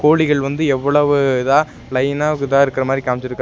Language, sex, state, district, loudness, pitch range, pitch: Tamil, male, Tamil Nadu, Nilgiris, -16 LUFS, 130-145 Hz, 140 Hz